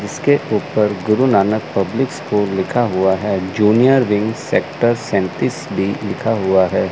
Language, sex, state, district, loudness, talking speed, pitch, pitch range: Hindi, male, Chandigarh, Chandigarh, -17 LUFS, 145 wpm, 105 Hz, 95-120 Hz